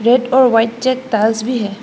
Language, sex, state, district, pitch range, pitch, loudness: Hindi, female, Assam, Hailakandi, 220-250 Hz, 235 Hz, -14 LUFS